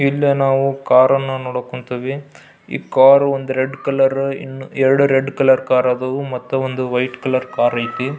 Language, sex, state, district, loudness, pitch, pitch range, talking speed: Kannada, male, Karnataka, Belgaum, -16 LUFS, 135 Hz, 130-135 Hz, 155 wpm